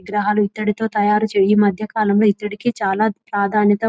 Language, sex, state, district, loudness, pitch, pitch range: Telugu, female, Telangana, Nalgonda, -18 LUFS, 210 Hz, 205-215 Hz